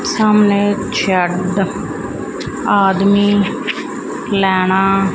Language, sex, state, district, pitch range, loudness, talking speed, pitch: Punjabi, female, Punjab, Fazilka, 190-205 Hz, -15 LUFS, 45 wpm, 195 Hz